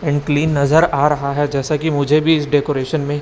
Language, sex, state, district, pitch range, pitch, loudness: Hindi, male, Chhattisgarh, Raipur, 145-150 Hz, 145 Hz, -16 LUFS